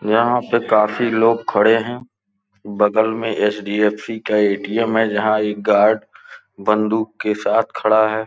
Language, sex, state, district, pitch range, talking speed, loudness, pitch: Hindi, male, Uttar Pradesh, Gorakhpur, 105-115 Hz, 145 wpm, -17 LUFS, 110 Hz